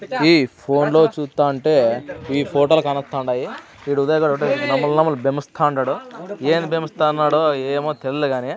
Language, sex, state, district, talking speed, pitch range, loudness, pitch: Telugu, male, Andhra Pradesh, Sri Satya Sai, 140 wpm, 140-155 Hz, -19 LUFS, 145 Hz